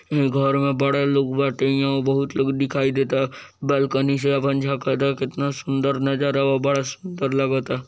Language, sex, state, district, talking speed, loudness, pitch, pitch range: Bhojpuri, male, Bihar, East Champaran, 160 wpm, -21 LUFS, 135 Hz, 135-140 Hz